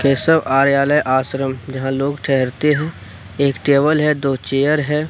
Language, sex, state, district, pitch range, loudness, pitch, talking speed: Hindi, male, Jharkhand, Deoghar, 135-150 Hz, -17 LUFS, 140 Hz, 155 wpm